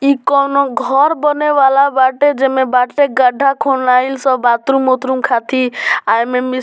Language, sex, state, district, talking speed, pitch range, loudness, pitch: Bhojpuri, male, Bihar, Muzaffarpur, 165 wpm, 255-280 Hz, -13 LUFS, 265 Hz